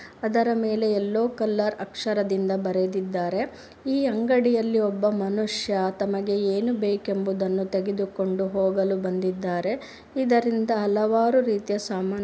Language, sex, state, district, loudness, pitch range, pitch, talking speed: Kannada, female, Karnataka, Bijapur, -25 LUFS, 195-220 Hz, 205 Hz, 105 wpm